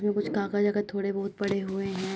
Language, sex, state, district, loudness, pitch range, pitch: Hindi, female, Uttar Pradesh, Jyotiba Phule Nagar, -29 LUFS, 195-205 Hz, 200 Hz